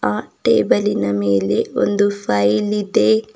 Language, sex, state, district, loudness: Kannada, female, Karnataka, Bidar, -17 LUFS